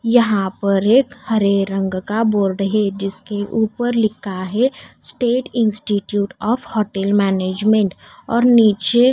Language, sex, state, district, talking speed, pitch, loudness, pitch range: Hindi, female, Odisha, Nuapada, 125 wpm, 210 Hz, -17 LUFS, 195-230 Hz